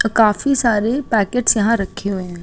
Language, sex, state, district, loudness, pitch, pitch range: Hindi, female, Uttar Pradesh, Gorakhpur, -17 LUFS, 220 Hz, 205-240 Hz